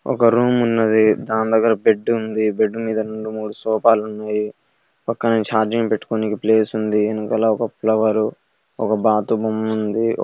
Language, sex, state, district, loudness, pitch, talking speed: Telugu, male, Telangana, Nalgonda, -19 LUFS, 110 Hz, 145 wpm